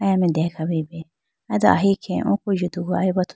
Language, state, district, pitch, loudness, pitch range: Idu Mishmi, Arunachal Pradesh, Lower Dibang Valley, 180 Hz, -21 LUFS, 160-190 Hz